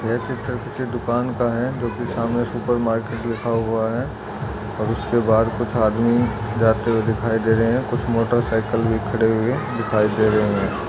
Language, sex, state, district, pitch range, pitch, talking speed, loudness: Hindi, male, Maharashtra, Solapur, 110-120 Hz, 115 Hz, 180 wpm, -21 LUFS